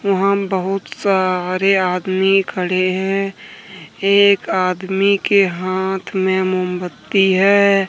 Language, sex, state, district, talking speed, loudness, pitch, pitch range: Hindi, male, Jharkhand, Deoghar, 105 wpm, -16 LUFS, 190 Hz, 185-195 Hz